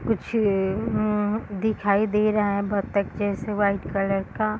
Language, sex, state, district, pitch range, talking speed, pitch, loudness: Hindi, female, Bihar, Bhagalpur, 200-215 Hz, 145 wpm, 205 Hz, -24 LUFS